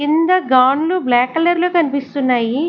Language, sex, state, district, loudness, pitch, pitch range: Telugu, female, Andhra Pradesh, Sri Satya Sai, -15 LUFS, 295 Hz, 260-345 Hz